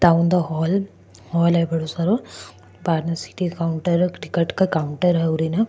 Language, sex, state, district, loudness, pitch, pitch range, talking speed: Marwari, female, Rajasthan, Churu, -21 LUFS, 170 Hz, 165-180 Hz, 85 wpm